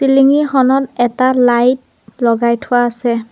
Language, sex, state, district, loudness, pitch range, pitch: Assamese, female, Assam, Sonitpur, -13 LUFS, 235-265 Hz, 245 Hz